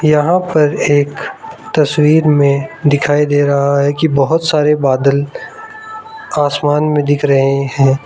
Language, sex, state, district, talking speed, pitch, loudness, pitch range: Hindi, male, Arunachal Pradesh, Lower Dibang Valley, 135 wpm, 145 Hz, -13 LUFS, 140-155 Hz